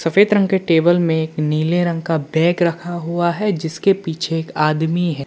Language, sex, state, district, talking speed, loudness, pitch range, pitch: Hindi, male, Arunachal Pradesh, Lower Dibang Valley, 205 wpm, -18 LUFS, 160-175 Hz, 170 Hz